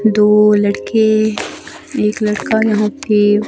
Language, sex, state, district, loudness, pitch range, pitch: Hindi, female, Himachal Pradesh, Shimla, -14 LUFS, 210-220 Hz, 210 Hz